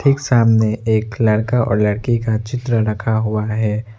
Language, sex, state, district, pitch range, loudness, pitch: Hindi, male, West Bengal, Darjeeling, 110-120 Hz, -17 LUFS, 110 Hz